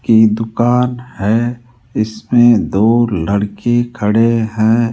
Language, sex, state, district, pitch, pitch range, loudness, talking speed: Hindi, male, Rajasthan, Jaipur, 115 Hz, 110-120 Hz, -14 LUFS, 95 wpm